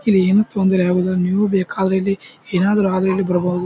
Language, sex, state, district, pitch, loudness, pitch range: Kannada, male, Karnataka, Bijapur, 190 Hz, -17 LUFS, 180-195 Hz